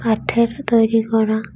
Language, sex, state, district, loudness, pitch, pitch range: Bengali, female, Tripura, West Tripura, -17 LUFS, 225 Hz, 220-230 Hz